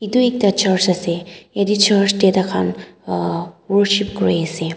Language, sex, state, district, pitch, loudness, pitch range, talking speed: Nagamese, female, Nagaland, Dimapur, 190 Hz, -17 LUFS, 165-205 Hz, 150 wpm